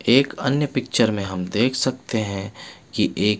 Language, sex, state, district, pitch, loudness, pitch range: Hindi, male, Bihar, Patna, 115 Hz, -22 LUFS, 105-130 Hz